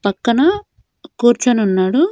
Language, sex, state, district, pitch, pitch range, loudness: Telugu, female, Andhra Pradesh, Annamaya, 240 Hz, 205-305 Hz, -15 LUFS